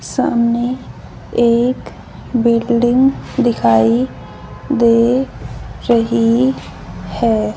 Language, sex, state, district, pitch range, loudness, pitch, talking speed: Hindi, female, Haryana, Charkhi Dadri, 230-250 Hz, -15 LUFS, 235 Hz, 55 wpm